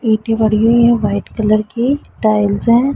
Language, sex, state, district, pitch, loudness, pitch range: Hindi, female, Punjab, Pathankot, 220 Hz, -14 LUFS, 215-235 Hz